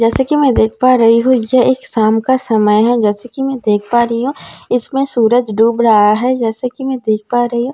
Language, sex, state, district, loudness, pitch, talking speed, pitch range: Hindi, female, Bihar, Katihar, -13 LUFS, 240 Hz, 250 wpm, 220-255 Hz